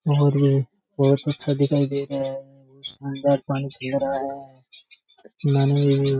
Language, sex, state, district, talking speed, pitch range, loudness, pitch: Rajasthani, male, Rajasthan, Churu, 175 wpm, 135-145 Hz, -22 LUFS, 140 Hz